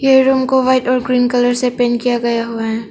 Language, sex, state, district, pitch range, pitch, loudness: Hindi, female, Arunachal Pradesh, Longding, 240-260 Hz, 245 Hz, -15 LUFS